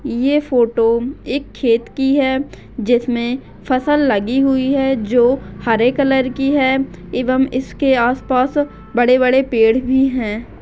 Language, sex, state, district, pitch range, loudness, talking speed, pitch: Hindi, female, Maharashtra, Nagpur, 240-270 Hz, -16 LUFS, 140 wpm, 255 Hz